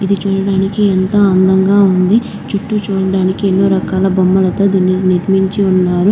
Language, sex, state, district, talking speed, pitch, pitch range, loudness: Telugu, female, Andhra Pradesh, Krishna, 125 wpm, 190 Hz, 185-200 Hz, -12 LUFS